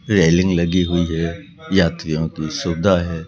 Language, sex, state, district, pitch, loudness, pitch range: Hindi, male, Rajasthan, Jaipur, 85 Hz, -18 LUFS, 80-90 Hz